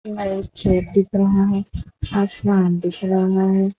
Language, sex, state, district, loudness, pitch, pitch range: Hindi, female, Gujarat, Valsad, -18 LUFS, 195 Hz, 190-200 Hz